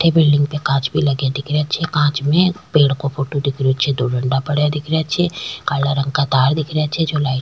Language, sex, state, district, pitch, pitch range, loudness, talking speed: Rajasthani, female, Rajasthan, Nagaur, 145 Hz, 135-155 Hz, -17 LUFS, 265 wpm